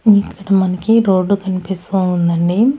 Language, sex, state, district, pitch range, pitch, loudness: Telugu, female, Andhra Pradesh, Annamaya, 185-200 Hz, 190 Hz, -15 LUFS